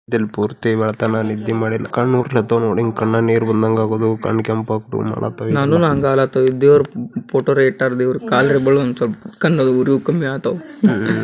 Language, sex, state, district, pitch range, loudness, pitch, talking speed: Kannada, male, Karnataka, Bijapur, 110-135 Hz, -17 LUFS, 120 Hz, 140 wpm